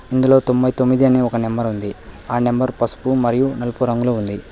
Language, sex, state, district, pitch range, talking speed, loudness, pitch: Telugu, male, Telangana, Hyderabad, 120-130 Hz, 185 wpm, -18 LUFS, 125 Hz